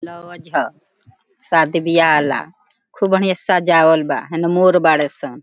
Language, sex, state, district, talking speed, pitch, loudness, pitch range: Bhojpuri, female, Bihar, Gopalganj, 155 wpm, 170 Hz, -15 LUFS, 160-180 Hz